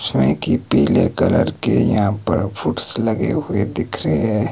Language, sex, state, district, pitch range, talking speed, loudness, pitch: Hindi, male, Himachal Pradesh, Shimla, 100-110 Hz, 175 wpm, -18 LUFS, 105 Hz